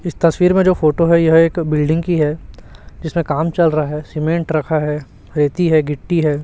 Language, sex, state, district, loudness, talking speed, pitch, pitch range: Hindi, male, Chhattisgarh, Raipur, -16 LUFS, 215 wpm, 160 Hz, 150-170 Hz